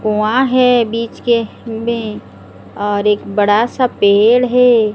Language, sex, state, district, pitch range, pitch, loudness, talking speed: Hindi, female, Odisha, Sambalpur, 205-240 Hz, 225 Hz, -14 LUFS, 135 wpm